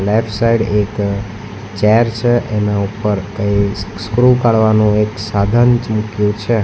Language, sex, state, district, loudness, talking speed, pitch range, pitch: Gujarati, male, Gujarat, Valsad, -15 LUFS, 125 wpm, 100-115 Hz, 105 Hz